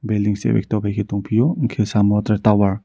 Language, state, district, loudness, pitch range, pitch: Kokborok, Tripura, Dhalai, -19 LUFS, 100-110 Hz, 105 Hz